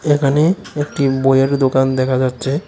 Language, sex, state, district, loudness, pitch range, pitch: Bengali, male, Tripura, West Tripura, -16 LUFS, 130-145 Hz, 135 Hz